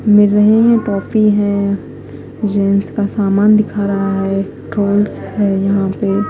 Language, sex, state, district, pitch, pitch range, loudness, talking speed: Hindi, female, Punjab, Fazilka, 200 Hz, 195-210 Hz, -14 LUFS, 135 wpm